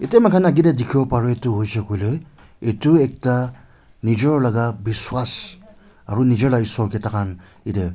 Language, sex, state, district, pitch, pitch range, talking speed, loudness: Nagamese, male, Nagaland, Kohima, 125 Hz, 110-140 Hz, 160 wpm, -19 LUFS